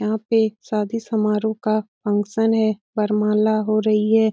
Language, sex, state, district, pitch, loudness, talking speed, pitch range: Hindi, female, Bihar, Lakhisarai, 215 Hz, -20 LUFS, 150 wpm, 210-220 Hz